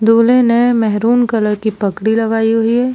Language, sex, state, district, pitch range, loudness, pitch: Hindi, female, Chhattisgarh, Bilaspur, 215-240 Hz, -13 LUFS, 225 Hz